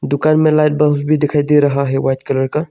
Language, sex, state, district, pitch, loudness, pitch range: Hindi, male, Arunachal Pradesh, Longding, 145 Hz, -14 LUFS, 140-150 Hz